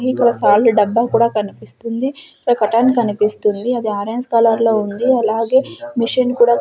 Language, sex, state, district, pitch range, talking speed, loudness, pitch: Telugu, female, Andhra Pradesh, Sri Satya Sai, 215-245 Hz, 145 wpm, -16 LUFS, 230 Hz